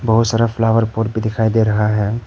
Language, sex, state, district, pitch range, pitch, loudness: Hindi, male, Arunachal Pradesh, Papum Pare, 110-115 Hz, 115 Hz, -16 LUFS